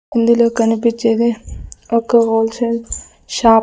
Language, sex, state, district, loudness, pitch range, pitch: Telugu, female, Andhra Pradesh, Sri Satya Sai, -15 LUFS, 225-235 Hz, 230 Hz